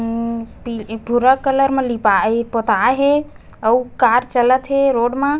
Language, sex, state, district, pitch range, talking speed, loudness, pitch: Chhattisgarhi, female, Chhattisgarh, Bastar, 230-270 Hz, 175 wpm, -16 LUFS, 245 Hz